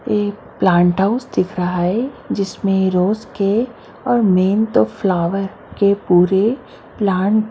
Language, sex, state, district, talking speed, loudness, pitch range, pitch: Hindi, female, Maharashtra, Mumbai Suburban, 135 wpm, -17 LUFS, 185-220 Hz, 195 Hz